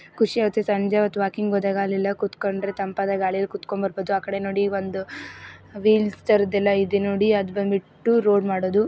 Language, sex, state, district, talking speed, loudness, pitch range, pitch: Kannada, female, Karnataka, Mysore, 155 wpm, -23 LUFS, 195-205 Hz, 200 Hz